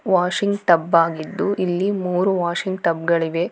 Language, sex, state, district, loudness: Kannada, female, Karnataka, Bangalore, -20 LUFS